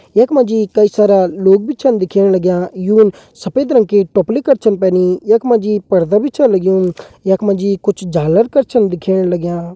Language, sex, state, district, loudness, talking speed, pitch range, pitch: Hindi, male, Uttarakhand, Uttarkashi, -13 LUFS, 190 wpm, 185-220 Hz, 200 Hz